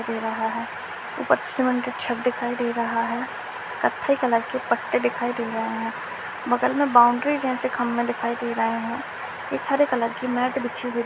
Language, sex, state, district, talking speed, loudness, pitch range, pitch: Hindi, female, Uttar Pradesh, Jyotiba Phule Nagar, 205 wpm, -24 LUFS, 235-250 Hz, 240 Hz